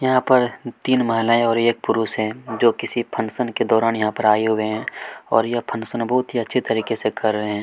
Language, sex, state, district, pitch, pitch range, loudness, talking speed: Hindi, male, Chhattisgarh, Kabirdham, 115 Hz, 110-120 Hz, -20 LUFS, 230 wpm